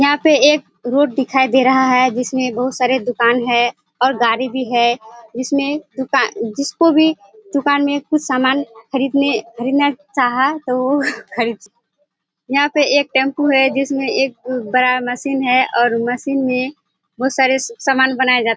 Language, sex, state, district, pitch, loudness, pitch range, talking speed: Hindi, female, Bihar, Kishanganj, 260 Hz, -16 LUFS, 245-280 Hz, 170 wpm